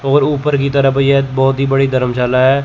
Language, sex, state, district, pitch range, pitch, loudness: Hindi, male, Chandigarh, Chandigarh, 130-140 Hz, 135 Hz, -13 LUFS